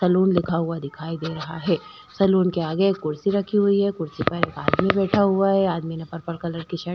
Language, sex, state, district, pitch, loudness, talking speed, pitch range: Hindi, female, Chhattisgarh, Korba, 175 Hz, -22 LUFS, 250 wpm, 165-195 Hz